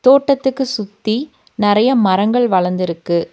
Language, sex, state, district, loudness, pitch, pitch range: Tamil, female, Tamil Nadu, Nilgiris, -16 LUFS, 220 Hz, 185-260 Hz